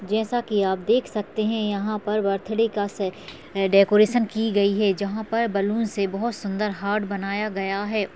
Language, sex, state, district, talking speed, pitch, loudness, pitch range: Hindi, male, Uttar Pradesh, Jalaun, 190 wpm, 210 Hz, -23 LUFS, 200-220 Hz